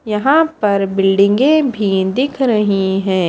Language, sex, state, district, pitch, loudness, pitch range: Hindi, female, Haryana, Charkhi Dadri, 210 Hz, -14 LUFS, 195-265 Hz